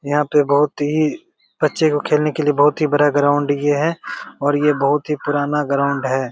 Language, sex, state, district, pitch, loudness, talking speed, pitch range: Hindi, male, Bihar, Begusarai, 145 Hz, -17 LUFS, 200 wpm, 145-150 Hz